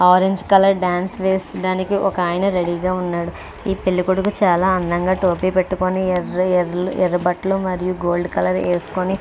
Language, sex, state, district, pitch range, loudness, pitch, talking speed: Telugu, female, Andhra Pradesh, Krishna, 180-190 Hz, -19 LUFS, 185 Hz, 155 wpm